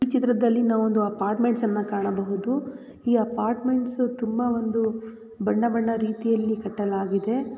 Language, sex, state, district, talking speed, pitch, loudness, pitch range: Kannada, female, Karnataka, Raichur, 120 wpm, 225 Hz, -24 LUFS, 215-240 Hz